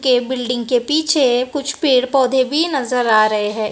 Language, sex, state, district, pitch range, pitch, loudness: Hindi, male, Maharashtra, Gondia, 245-280 Hz, 255 Hz, -16 LUFS